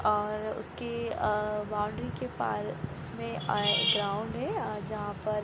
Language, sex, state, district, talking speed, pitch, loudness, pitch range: Hindi, female, Bihar, Sitamarhi, 155 wpm, 210 Hz, -31 LUFS, 205-215 Hz